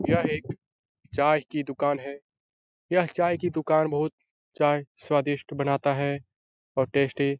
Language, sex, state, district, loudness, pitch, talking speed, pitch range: Hindi, male, Bihar, Lakhisarai, -26 LUFS, 145 Hz, 145 wpm, 140-155 Hz